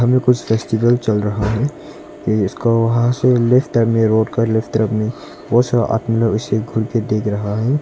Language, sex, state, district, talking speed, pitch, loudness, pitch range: Hindi, male, Arunachal Pradesh, Longding, 205 wpm, 115 Hz, -17 LUFS, 110-120 Hz